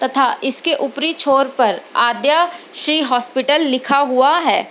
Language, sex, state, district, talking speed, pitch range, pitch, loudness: Hindi, female, Bihar, Lakhisarai, 140 wpm, 260-305 Hz, 275 Hz, -16 LUFS